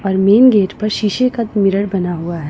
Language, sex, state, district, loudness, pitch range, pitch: Hindi, female, Punjab, Pathankot, -14 LUFS, 190-215 Hz, 200 Hz